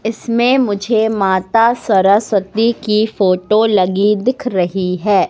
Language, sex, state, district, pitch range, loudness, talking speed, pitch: Hindi, female, Madhya Pradesh, Katni, 190-230 Hz, -14 LUFS, 115 wpm, 210 Hz